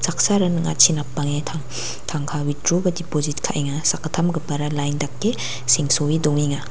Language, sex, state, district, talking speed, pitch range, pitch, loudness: Garo, female, Meghalaya, West Garo Hills, 125 wpm, 145-165 Hz, 150 Hz, -21 LUFS